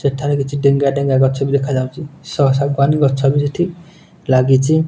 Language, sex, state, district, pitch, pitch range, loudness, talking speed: Odia, male, Odisha, Nuapada, 140 Hz, 135-145 Hz, -16 LUFS, 170 wpm